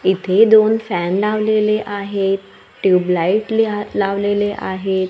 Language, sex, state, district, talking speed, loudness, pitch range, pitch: Marathi, female, Maharashtra, Gondia, 105 wpm, -17 LUFS, 190-215 Hz, 200 Hz